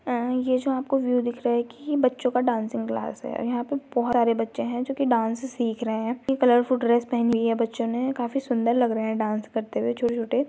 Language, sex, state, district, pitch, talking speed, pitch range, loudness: Hindi, female, Uttarakhand, Uttarkashi, 240 Hz, 250 wpm, 230-255 Hz, -25 LUFS